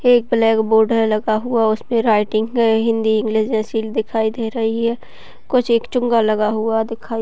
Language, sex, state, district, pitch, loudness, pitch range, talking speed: Hindi, female, Uttar Pradesh, Gorakhpur, 225 Hz, -17 LUFS, 220-230 Hz, 190 wpm